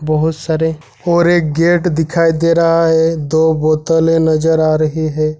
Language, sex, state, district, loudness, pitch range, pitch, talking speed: Hindi, male, Jharkhand, Ranchi, -13 LUFS, 155-165 Hz, 160 Hz, 165 wpm